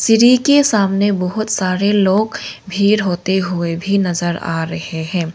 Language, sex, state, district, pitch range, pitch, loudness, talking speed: Hindi, female, Arunachal Pradesh, Longding, 175-205 Hz, 190 Hz, -16 LUFS, 155 wpm